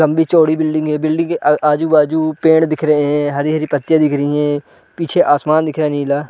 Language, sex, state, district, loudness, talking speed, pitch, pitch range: Hindi, male, Chhattisgarh, Balrampur, -15 LUFS, 220 wpm, 155 Hz, 150-160 Hz